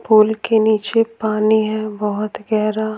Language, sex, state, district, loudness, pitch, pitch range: Hindi, female, Bihar, Patna, -17 LUFS, 215 Hz, 215-220 Hz